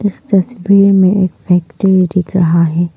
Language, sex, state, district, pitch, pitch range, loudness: Hindi, female, Arunachal Pradesh, Papum Pare, 185 Hz, 175-195 Hz, -12 LUFS